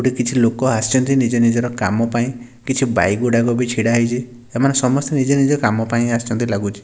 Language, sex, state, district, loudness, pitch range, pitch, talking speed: Odia, male, Odisha, Nuapada, -17 LUFS, 115-130 Hz, 120 Hz, 195 wpm